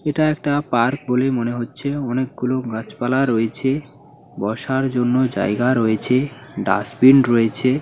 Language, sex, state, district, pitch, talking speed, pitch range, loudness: Bengali, male, West Bengal, Paschim Medinipur, 130 Hz, 125 wpm, 120-135 Hz, -19 LUFS